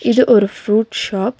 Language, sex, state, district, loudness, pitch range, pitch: Tamil, female, Tamil Nadu, Nilgiris, -15 LUFS, 210-240 Hz, 225 Hz